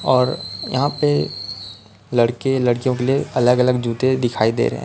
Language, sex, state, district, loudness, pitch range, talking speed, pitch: Hindi, male, Chhattisgarh, Raipur, -19 LUFS, 115-130 Hz, 175 wpm, 125 Hz